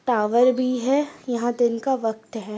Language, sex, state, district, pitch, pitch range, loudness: Hindi, female, Uttar Pradesh, Muzaffarnagar, 240 Hz, 225-255 Hz, -22 LUFS